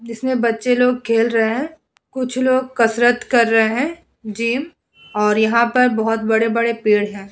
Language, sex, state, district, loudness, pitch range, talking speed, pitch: Hindi, female, Uttar Pradesh, Hamirpur, -17 LUFS, 225-250 Hz, 165 wpm, 235 Hz